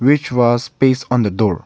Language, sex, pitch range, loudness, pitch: English, male, 115-130 Hz, -16 LUFS, 125 Hz